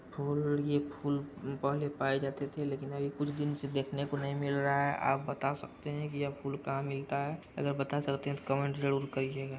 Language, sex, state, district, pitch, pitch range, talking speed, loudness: Hindi, male, Bihar, Araria, 140 Hz, 140-145 Hz, 225 wpm, -35 LUFS